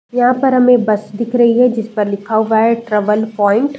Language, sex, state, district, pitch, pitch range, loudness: Hindi, female, Uttar Pradesh, Deoria, 225 Hz, 210-245 Hz, -14 LUFS